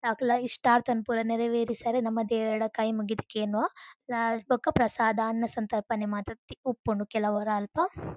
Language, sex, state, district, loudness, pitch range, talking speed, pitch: Tulu, female, Karnataka, Dakshina Kannada, -29 LUFS, 220-240 Hz, 130 wpm, 230 Hz